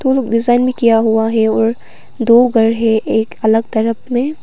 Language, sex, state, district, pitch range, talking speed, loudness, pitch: Hindi, female, Arunachal Pradesh, Papum Pare, 225-245 Hz, 150 wpm, -14 LUFS, 230 Hz